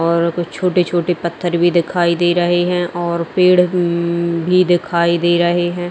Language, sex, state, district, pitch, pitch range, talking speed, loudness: Hindi, female, Chhattisgarh, Kabirdham, 175 Hz, 170-175 Hz, 175 wpm, -15 LUFS